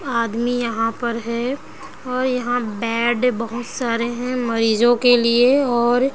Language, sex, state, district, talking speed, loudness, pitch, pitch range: Hindi, female, Bihar, Sitamarhi, 145 wpm, -19 LUFS, 240 Hz, 230-250 Hz